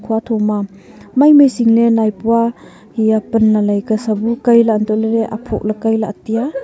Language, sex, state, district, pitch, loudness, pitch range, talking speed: Wancho, female, Arunachal Pradesh, Longding, 220 Hz, -14 LUFS, 215-230 Hz, 155 wpm